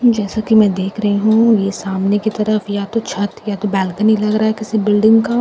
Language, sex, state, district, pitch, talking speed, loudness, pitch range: Hindi, female, Bihar, Katihar, 215 Hz, 245 wpm, -15 LUFS, 200-220 Hz